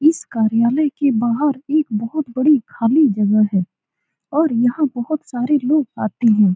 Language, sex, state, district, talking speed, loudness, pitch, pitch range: Hindi, female, Bihar, Saran, 155 wpm, -18 LUFS, 250 Hz, 225-300 Hz